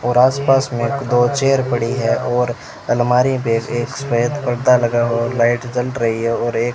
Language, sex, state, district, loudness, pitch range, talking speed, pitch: Hindi, male, Rajasthan, Bikaner, -17 LUFS, 120-130 Hz, 215 wpm, 120 Hz